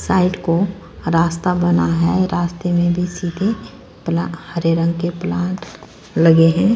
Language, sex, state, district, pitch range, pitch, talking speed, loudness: Hindi, female, Punjab, Fazilka, 165-180 Hz, 170 Hz, 140 wpm, -18 LUFS